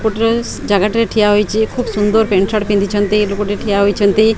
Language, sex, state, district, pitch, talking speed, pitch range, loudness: Odia, female, Odisha, Khordha, 210 Hz, 150 wpm, 205-220 Hz, -14 LUFS